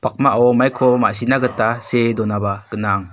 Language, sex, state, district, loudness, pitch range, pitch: Garo, male, Meghalaya, South Garo Hills, -17 LUFS, 105-125 Hz, 120 Hz